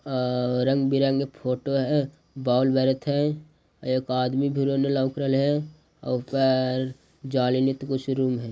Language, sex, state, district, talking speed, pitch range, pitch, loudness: Magahi, male, Bihar, Jahanabad, 150 wpm, 130-140 Hz, 135 Hz, -25 LUFS